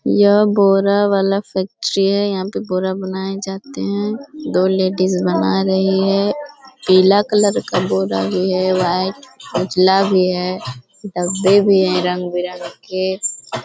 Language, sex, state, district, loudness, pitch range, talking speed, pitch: Hindi, female, Bihar, Jamui, -17 LUFS, 185-200 Hz, 135 wpm, 190 Hz